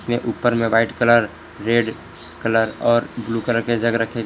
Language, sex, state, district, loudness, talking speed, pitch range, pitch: Hindi, male, Jharkhand, Palamu, -19 LUFS, 185 wpm, 115-120 Hz, 115 Hz